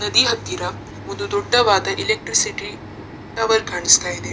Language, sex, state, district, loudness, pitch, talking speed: Kannada, female, Karnataka, Dakshina Kannada, -18 LUFS, 205 Hz, 125 wpm